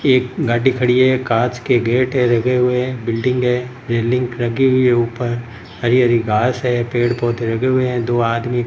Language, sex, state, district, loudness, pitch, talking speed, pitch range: Hindi, male, Rajasthan, Bikaner, -17 LUFS, 125 Hz, 195 wpm, 120-125 Hz